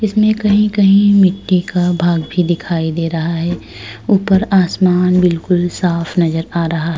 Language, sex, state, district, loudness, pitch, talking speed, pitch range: Hindi, female, Uttar Pradesh, Jyotiba Phule Nagar, -14 LUFS, 175 Hz, 165 wpm, 165-195 Hz